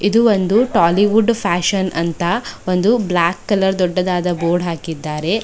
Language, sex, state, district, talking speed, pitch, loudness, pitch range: Kannada, female, Karnataka, Bidar, 120 wpm, 185 Hz, -16 LUFS, 170-205 Hz